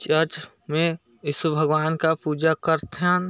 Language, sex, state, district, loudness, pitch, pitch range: Chhattisgarhi, male, Chhattisgarh, Sarguja, -23 LUFS, 160 Hz, 155-165 Hz